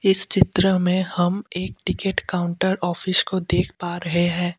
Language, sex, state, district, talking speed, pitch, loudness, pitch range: Hindi, male, Assam, Kamrup Metropolitan, 170 wpm, 180 Hz, -21 LUFS, 175-190 Hz